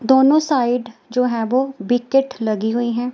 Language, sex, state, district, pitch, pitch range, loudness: Hindi, female, Himachal Pradesh, Shimla, 245 Hz, 235-265 Hz, -18 LUFS